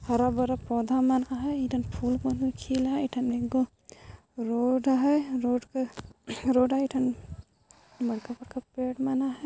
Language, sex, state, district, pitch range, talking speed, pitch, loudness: Sadri, female, Chhattisgarh, Jashpur, 250-265 Hz, 160 wpm, 255 Hz, -28 LUFS